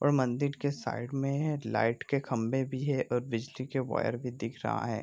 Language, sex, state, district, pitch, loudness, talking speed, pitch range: Hindi, male, Bihar, Sitamarhi, 130 Hz, -32 LUFS, 225 wpm, 115-140 Hz